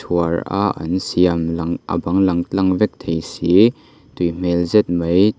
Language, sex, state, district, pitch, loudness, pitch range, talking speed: Mizo, male, Mizoram, Aizawl, 85 Hz, -18 LUFS, 85-95 Hz, 165 wpm